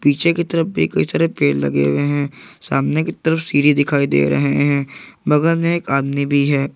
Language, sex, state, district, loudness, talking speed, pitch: Hindi, male, Jharkhand, Garhwa, -17 LUFS, 215 wpm, 145 Hz